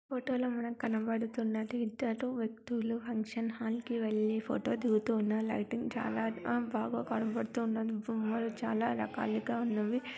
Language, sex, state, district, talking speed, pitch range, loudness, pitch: Telugu, female, Andhra Pradesh, Krishna, 110 wpm, 220-235 Hz, -35 LUFS, 230 Hz